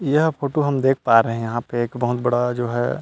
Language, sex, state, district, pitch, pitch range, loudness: Hindi, male, Chhattisgarh, Rajnandgaon, 125 Hz, 120-140 Hz, -20 LUFS